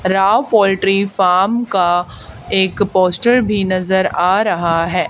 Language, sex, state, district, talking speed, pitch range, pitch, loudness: Hindi, female, Haryana, Charkhi Dadri, 130 wpm, 180-200 Hz, 190 Hz, -14 LUFS